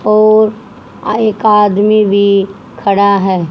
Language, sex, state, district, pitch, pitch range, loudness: Hindi, female, Haryana, Jhajjar, 210 Hz, 200-215 Hz, -10 LUFS